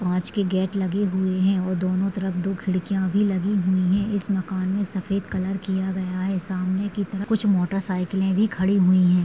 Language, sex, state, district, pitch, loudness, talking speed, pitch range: Hindi, female, Maharashtra, Solapur, 190 Hz, -23 LUFS, 215 wpm, 185-195 Hz